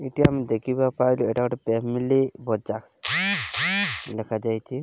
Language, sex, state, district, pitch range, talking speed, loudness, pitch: Odia, male, Odisha, Malkangiri, 115-135 Hz, 100 wpm, -24 LUFS, 125 Hz